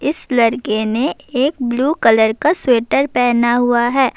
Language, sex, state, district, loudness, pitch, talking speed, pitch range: Urdu, female, Bihar, Saharsa, -15 LUFS, 245 Hz, 160 wpm, 235-275 Hz